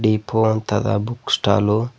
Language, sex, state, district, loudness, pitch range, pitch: Kannada, male, Karnataka, Bidar, -19 LUFS, 105-115 Hz, 110 Hz